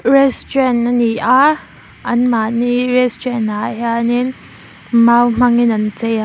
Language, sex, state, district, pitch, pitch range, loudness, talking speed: Mizo, female, Mizoram, Aizawl, 240 Hz, 230-250 Hz, -14 LUFS, 115 wpm